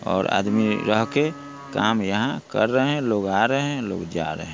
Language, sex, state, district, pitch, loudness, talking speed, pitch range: Hindi, male, Bihar, Muzaffarpur, 115 Hz, -22 LUFS, 210 wpm, 105-140 Hz